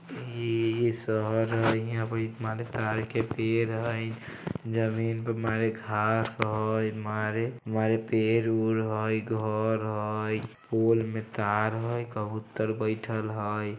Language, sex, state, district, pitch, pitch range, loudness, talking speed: Maithili, male, Bihar, Samastipur, 110 Hz, 110-115 Hz, -29 LUFS, 120 wpm